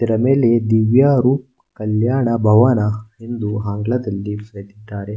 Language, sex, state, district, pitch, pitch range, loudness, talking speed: Kannada, male, Karnataka, Mysore, 110 Hz, 105-120 Hz, -17 LUFS, 95 wpm